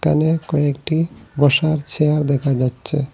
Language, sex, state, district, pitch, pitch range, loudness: Bengali, male, Assam, Hailakandi, 150 Hz, 140-155 Hz, -18 LUFS